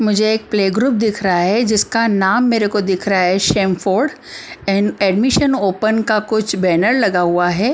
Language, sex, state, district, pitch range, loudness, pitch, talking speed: Hindi, female, Punjab, Pathankot, 190-225 Hz, -15 LUFS, 205 Hz, 180 wpm